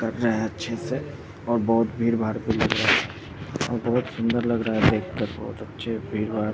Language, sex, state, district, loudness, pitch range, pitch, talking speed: Hindi, female, Bihar, Jamui, -25 LUFS, 110-115 Hz, 115 Hz, 210 wpm